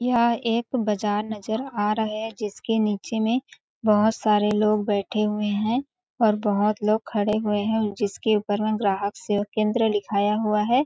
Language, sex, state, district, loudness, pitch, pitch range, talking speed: Hindi, female, Chhattisgarh, Balrampur, -24 LUFS, 215 Hz, 210-225 Hz, 170 wpm